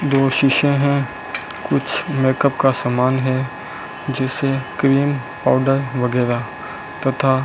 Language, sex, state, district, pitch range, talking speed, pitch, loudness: Hindi, male, Rajasthan, Bikaner, 130-140 Hz, 115 wpm, 135 Hz, -19 LUFS